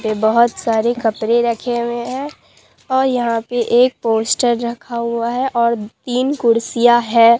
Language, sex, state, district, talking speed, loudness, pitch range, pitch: Hindi, male, Bihar, Katihar, 155 wpm, -16 LUFS, 230-245 Hz, 235 Hz